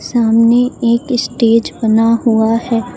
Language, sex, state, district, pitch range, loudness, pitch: Hindi, female, Uttar Pradesh, Lucknow, 230-240 Hz, -13 LUFS, 230 Hz